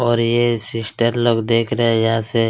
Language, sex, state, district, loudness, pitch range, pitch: Hindi, male, Chhattisgarh, Kabirdham, -17 LUFS, 115-120 Hz, 115 Hz